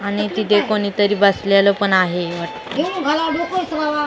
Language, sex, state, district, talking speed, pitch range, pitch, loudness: Marathi, female, Maharashtra, Mumbai Suburban, 105 wpm, 200-300 Hz, 205 Hz, -18 LUFS